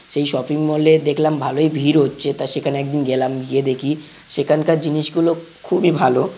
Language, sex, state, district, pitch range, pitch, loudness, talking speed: Bengali, male, West Bengal, North 24 Parganas, 140-155 Hz, 150 Hz, -18 LUFS, 180 wpm